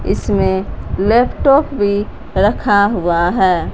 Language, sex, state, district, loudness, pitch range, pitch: Hindi, female, Punjab, Fazilka, -15 LUFS, 170-235 Hz, 200 Hz